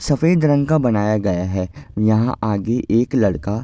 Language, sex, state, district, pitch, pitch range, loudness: Hindi, male, Uttar Pradesh, Ghazipur, 110 Hz, 100-125 Hz, -18 LUFS